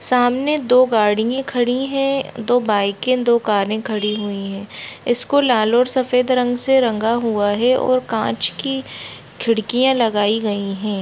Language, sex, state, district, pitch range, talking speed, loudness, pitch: Hindi, female, Jharkhand, Sahebganj, 210-255 Hz, 145 wpm, -18 LUFS, 240 Hz